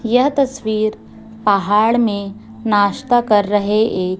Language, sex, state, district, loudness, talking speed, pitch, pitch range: Hindi, female, Chhattisgarh, Raipur, -16 LUFS, 115 wpm, 210 Hz, 200-230 Hz